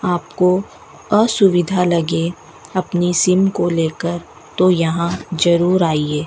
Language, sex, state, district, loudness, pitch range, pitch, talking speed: Hindi, female, Rajasthan, Bikaner, -17 LUFS, 170-185 Hz, 175 Hz, 105 wpm